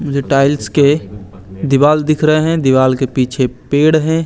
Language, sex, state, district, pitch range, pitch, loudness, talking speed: Hindi, male, Chandigarh, Chandigarh, 130-155 Hz, 140 Hz, -13 LUFS, 170 wpm